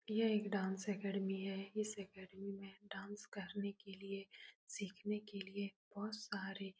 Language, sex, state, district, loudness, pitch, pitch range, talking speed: Hindi, female, Uttar Pradesh, Etah, -45 LUFS, 200 Hz, 195-205 Hz, 160 wpm